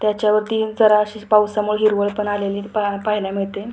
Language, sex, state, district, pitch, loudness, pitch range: Marathi, female, Maharashtra, Pune, 210 Hz, -19 LUFS, 205-215 Hz